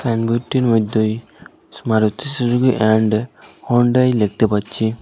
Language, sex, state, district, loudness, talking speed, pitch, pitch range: Bengali, male, Assam, Hailakandi, -17 LUFS, 85 wpm, 115 Hz, 110-120 Hz